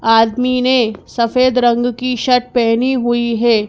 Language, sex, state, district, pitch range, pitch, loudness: Hindi, male, Madhya Pradesh, Bhopal, 230-250 Hz, 240 Hz, -14 LUFS